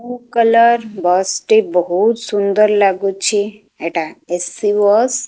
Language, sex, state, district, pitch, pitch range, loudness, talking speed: Odia, female, Odisha, Khordha, 205 Hz, 185-230 Hz, -15 LUFS, 125 wpm